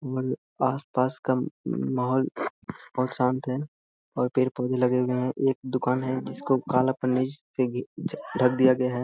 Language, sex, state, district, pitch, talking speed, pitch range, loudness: Hindi, male, Bihar, Purnia, 130 Hz, 170 wpm, 125-130 Hz, -27 LUFS